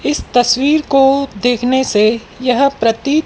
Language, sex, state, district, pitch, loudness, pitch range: Hindi, female, Madhya Pradesh, Dhar, 255 Hz, -13 LUFS, 235-275 Hz